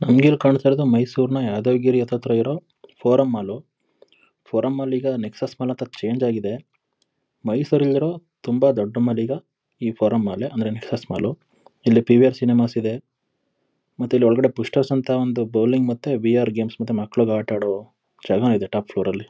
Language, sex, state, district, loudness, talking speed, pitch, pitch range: Kannada, male, Karnataka, Mysore, -21 LUFS, 150 wpm, 125 Hz, 115-135 Hz